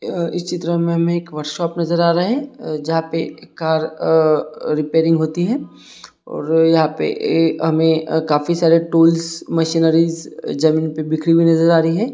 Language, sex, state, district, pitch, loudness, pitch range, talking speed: Hindi, male, Chhattisgarh, Bilaspur, 165 Hz, -17 LUFS, 160-170 Hz, 195 wpm